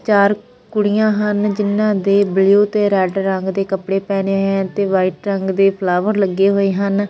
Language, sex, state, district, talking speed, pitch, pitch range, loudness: Punjabi, female, Punjab, Fazilka, 170 wpm, 195 Hz, 195-205 Hz, -16 LUFS